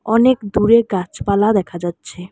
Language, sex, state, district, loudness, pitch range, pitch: Bengali, female, West Bengal, Alipurduar, -16 LUFS, 180-225 Hz, 205 Hz